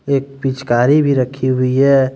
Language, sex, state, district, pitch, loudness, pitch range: Hindi, male, Jharkhand, Deoghar, 135 Hz, -15 LUFS, 130-140 Hz